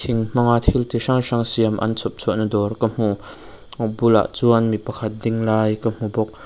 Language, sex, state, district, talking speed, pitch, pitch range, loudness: Mizo, male, Mizoram, Aizawl, 205 wpm, 115 Hz, 110-115 Hz, -19 LUFS